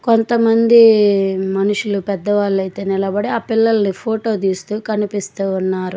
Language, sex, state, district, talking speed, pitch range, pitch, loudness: Telugu, female, Andhra Pradesh, Chittoor, 110 wpm, 195-225 Hz, 205 Hz, -16 LUFS